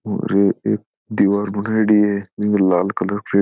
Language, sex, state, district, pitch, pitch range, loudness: Rajasthani, male, Rajasthan, Churu, 100 Hz, 100-105 Hz, -18 LUFS